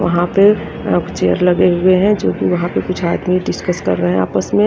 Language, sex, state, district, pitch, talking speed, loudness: Hindi, female, Haryana, Rohtak, 180 Hz, 245 wpm, -15 LUFS